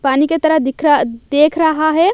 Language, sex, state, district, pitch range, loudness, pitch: Hindi, female, Odisha, Malkangiri, 285-320 Hz, -14 LUFS, 310 Hz